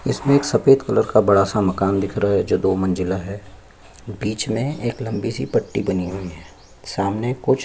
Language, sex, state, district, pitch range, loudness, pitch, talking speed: Hindi, male, Chhattisgarh, Sukma, 95-115 Hz, -20 LUFS, 100 Hz, 205 wpm